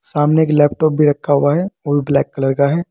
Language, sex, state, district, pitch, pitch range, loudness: Hindi, male, Uttar Pradesh, Saharanpur, 145 Hz, 145-155 Hz, -15 LUFS